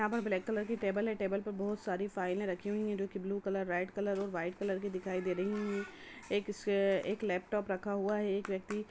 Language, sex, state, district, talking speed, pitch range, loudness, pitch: Hindi, female, Bihar, Sitamarhi, 255 wpm, 190-210 Hz, -36 LUFS, 200 Hz